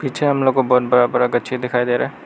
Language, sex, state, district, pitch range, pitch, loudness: Hindi, male, Arunachal Pradesh, Lower Dibang Valley, 125-130 Hz, 125 Hz, -17 LUFS